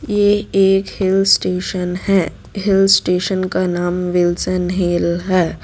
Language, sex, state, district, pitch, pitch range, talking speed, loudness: Hindi, female, Gujarat, Valsad, 185 Hz, 180-195 Hz, 130 wpm, -16 LUFS